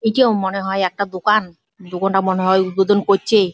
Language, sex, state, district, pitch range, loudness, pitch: Bengali, female, West Bengal, Jalpaiguri, 190-205 Hz, -17 LUFS, 195 Hz